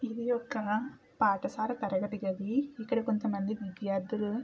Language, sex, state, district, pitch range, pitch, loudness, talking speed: Telugu, female, Andhra Pradesh, Krishna, 205-240 Hz, 215 Hz, -33 LUFS, 95 wpm